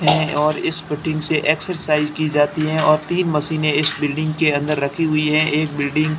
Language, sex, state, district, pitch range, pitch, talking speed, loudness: Hindi, male, Rajasthan, Barmer, 150-155 Hz, 155 Hz, 205 wpm, -19 LUFS